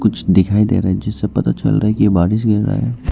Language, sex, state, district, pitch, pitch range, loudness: Hindi, male, Arunachal Pradesh, Lower Dibang Valley, 105 Hz, 100-110 Hz, -15 LUFS